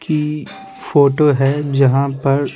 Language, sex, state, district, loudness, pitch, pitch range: Hindi, male, Bihar, Patna, -15 LUFS, 145 Hz, 140-150 Hz